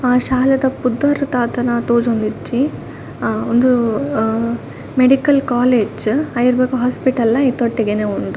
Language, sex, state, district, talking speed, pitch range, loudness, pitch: Tulu, female, Karnataka, Dakshina Kannada, 120 wpm, 235-260 Hz, -16 LUFS, 250 Hz